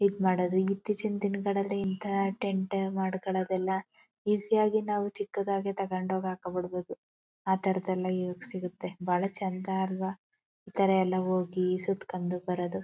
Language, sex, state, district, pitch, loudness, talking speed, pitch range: Kannada, female, Karnataka, Chamarajanagar, 190 Hz, -31 LUFS, 135 wpm, 185-200 Hz